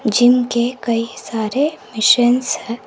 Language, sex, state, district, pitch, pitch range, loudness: Hindi, female, Karnataka, Koppal, 240 Hz, 230-250 Hz, -16 LUFS